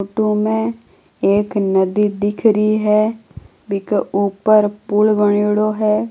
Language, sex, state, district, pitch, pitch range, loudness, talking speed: Marwari, female, Rajasthan, Nagaur, 210 Hz, 200-215 Hz, -16 LUFS, 120 wpm